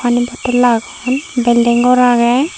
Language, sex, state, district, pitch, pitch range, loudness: Chakma, female, Tripura, Dhalai, 245 Hz, 240-250 Hz, -13 LUFS